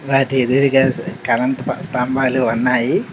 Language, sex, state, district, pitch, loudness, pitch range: Telugu, male, Telangana, Hyderabad, 130 Hz, -17 LUFS, 125-135 Hz